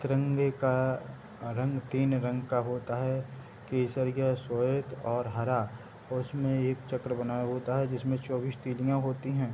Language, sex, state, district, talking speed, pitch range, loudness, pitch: Hindi, male, Bihar, Gopalganj, 155 wpm, 125-130 Hz, -31 LUFS, 130 Hz